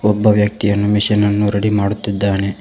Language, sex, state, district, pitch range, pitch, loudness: Kannada, male, Karnataka, Koppal, 100-105 Hz, 105 Hz, -15 LUFS